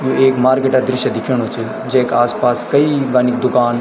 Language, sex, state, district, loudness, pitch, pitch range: Garhwali, male, Uttarakhand, Tehri Garhwal, -15 LUFS, 130 Hz, 120-130 Hz